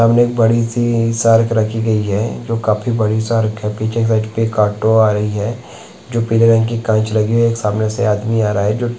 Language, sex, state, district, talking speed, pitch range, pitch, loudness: Hindi, male, Chhattisgarh, Sukma, 245 wpm, 110-115 Hz, 115 Hz, -15 LUFS